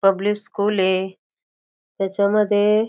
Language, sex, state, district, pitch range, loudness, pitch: Marathi, female, Maharashtra, Aurangabad, 195-210 Hz, -20 LUFS, 205 Hz